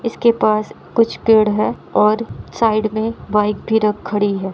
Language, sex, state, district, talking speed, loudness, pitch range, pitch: Hindi, female, Bihar, Kishanganj, 170 wpm, -17 LUFS, 210-225 Hz, 215 Hz